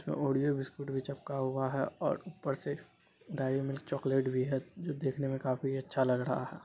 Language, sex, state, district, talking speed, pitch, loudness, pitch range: Hindi, male, Bihar, Supaul, 205 wpm, 135 Hz, -35 LUFS, 130-140 Hz